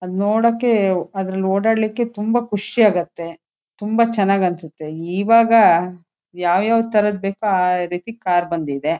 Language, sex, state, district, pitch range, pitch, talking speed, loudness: Kannada, female, Karnataka, Shimoga, 175-220 Hz, 195 Hz, 125 wpm, -18 LUFS